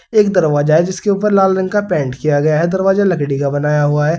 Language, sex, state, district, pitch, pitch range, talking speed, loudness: Hindi, male, Uttar Pradesh, Saharanpur, 165 Hz, 150-195 Hz, 255 wpm, -14 LUFS